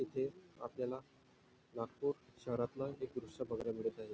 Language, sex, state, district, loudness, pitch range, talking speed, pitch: Marathi, male, Maharashtra, Nagpur, -43 LUFS, 125-145 Hz, 130 wpm, 130 Hz